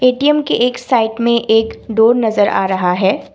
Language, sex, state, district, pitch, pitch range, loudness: Hindi, female, Assam, Kamrup Metropolitan, 230 Hz, 215-245 Hz, -14 LUFS